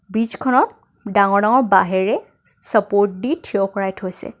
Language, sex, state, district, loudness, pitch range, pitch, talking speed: Assamese, female, Assam, Kamrup Metropolitan, -18 LUFS, 195-245 Hz, 205 Hz, 150 wpm